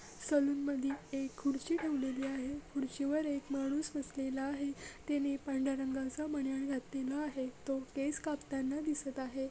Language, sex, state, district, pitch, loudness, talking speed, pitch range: Marathi, female, Maharashtra, Dhule, 275 Hz, -38 LUFS, 140 wpm, 270-285 Hz